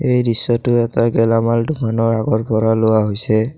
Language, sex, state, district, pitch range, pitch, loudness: Assamese, male, Assam, Kamrup Metropolitan, 110-120 Hz, 115 Hz, -16 LUFS